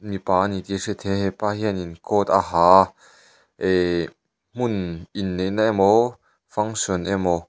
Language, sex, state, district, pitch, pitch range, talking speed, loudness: Mizo, male, Mizoram, Aizawl, 95 Hz, 90-105 Hz, 160 wpm, -21 LUFS